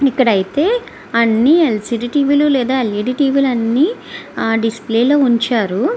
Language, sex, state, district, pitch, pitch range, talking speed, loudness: Telugu, female, Andhra Pradesh, Visakhapatnam, 250 Hz, 225-280 Hz, 170 wpm, -15 LUFS